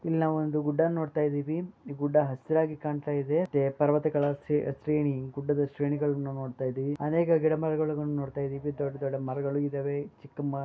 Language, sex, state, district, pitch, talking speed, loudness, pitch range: Kannada, male, Karnataka, Bellary, 145 Hz, 170 wpm, -29 LUFS, 140-150 Hz